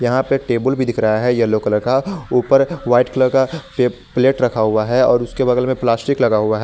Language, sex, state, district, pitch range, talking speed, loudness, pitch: Hindi, male, Jharkhand, Garhwa, 115-130 Hz, 245 wpm, -16 LUFS, 125 Hz